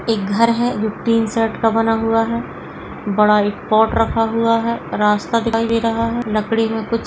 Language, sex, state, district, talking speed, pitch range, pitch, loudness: Hindi, female, Uttarakhand, Tehri Garhwal, 210 wpm, 220-230 Hz, 225 Hz, -17 LUFS